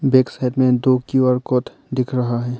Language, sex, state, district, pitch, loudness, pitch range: Hindi, male, Arunachal Pradesh, Papum Pare, 130 Hz, -18 LUFS, 125-130 Hz